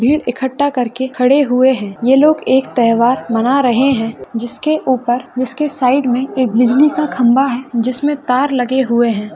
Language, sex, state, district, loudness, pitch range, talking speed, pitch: Hindi, female, Maharashtra, Solapur, -14 LUFS, 240-270 Hz, 180 wpm, 255 Hz